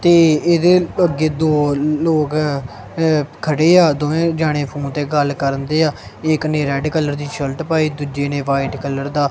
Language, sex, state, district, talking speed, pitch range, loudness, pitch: Punjabi, male, Punjab, Kapurthala, 180 wpm, 140-160 Hz, -17 LUFS, 150 Hz